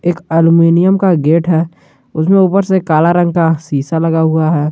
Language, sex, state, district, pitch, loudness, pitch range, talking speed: Hindi, male, Jharkhand, Garhwa, 165 Hz, -12 LUFS, 160-175 Hz, 165 wpm